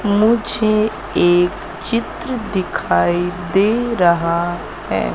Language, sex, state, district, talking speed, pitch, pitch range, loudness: Hindi, female, Madhya Pradesh, Katni, 80 wpm, 205 Hz, 175-225 Hz, -17 LUFS